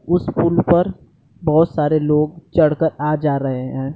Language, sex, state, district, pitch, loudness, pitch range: Hindi, male, Bihar, Kaimur, 155 Hz, -18 LUFS, 150-170 Hz